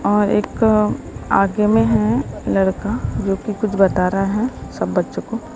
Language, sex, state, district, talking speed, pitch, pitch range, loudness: Hindi, female, Maharashtra, Gondia, 160 wpm, 210 Hz, 195-220 Hz, -18 LUFS